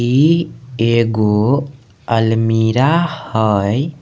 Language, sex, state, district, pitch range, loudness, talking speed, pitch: Maithili, male, Bihar, Samastipur, 110-140 Hz, -15 LUFS, 60 wpm, 120 Hz